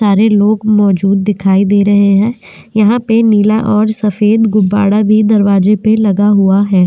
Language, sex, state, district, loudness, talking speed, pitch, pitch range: Hindi, female, Uttar Pradesh, Jyotiba Phule Nagar, -10 LUFS, 165 wpm, 210 Hz, 200-215 Hz